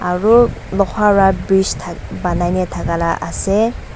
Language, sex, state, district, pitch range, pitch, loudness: Nagamese, female, Nagaland, Dimapur, 180-205 Hz, 190 Hz, -16 LUFS